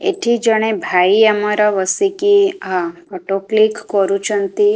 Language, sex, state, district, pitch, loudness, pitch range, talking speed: Odia, female, Odisha, Khordha, 210 Hz, -15 LUFS, 195-220 Hz, 115 wpm